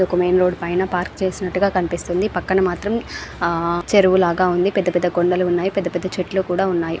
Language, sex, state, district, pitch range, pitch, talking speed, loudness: Telugu, female, Andhra Pradesh, Anantapur, 175-190 Hz, 180 Hz, 190 wpm, -19 LUFS